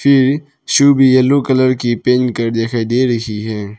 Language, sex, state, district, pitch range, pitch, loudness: Hindi, male, Arunachal Pradesh, Lower Dibang Valley, 115-135 Hz, 125 Hz, -14 LUFS